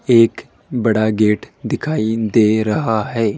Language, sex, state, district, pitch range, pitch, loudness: Hindi, male, Rajasthan, Jaipur, 110-115 Hz, 110 Hz, -17 LUFS